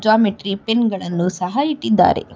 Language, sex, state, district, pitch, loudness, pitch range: Kannada, female, Karnataka, Bangalore, 215 Hz, -18 LUFS, 185-225 Hz